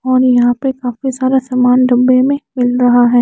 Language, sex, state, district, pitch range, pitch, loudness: Hindi, female, Chandigarh, Chandigarh, 245-260 Hz, 255 Hz, -12 LUFS